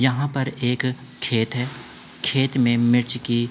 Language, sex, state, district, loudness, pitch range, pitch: Hindi, male, Uttar Pradesh, Budaun, -22 LUFS, 120-130 Hz, 125 Hz